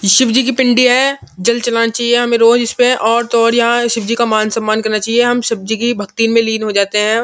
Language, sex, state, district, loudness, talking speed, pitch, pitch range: Hindi, male, Uttar Pradesh, Muzaffarnagar, -13 LUFS, 265 wpm, 230 Hz, 220-240 Hz